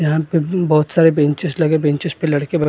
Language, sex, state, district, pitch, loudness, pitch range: Hindi, male, Maharashtra, Gondia, 160 Hz, -16 LUFS, 150-165 Hz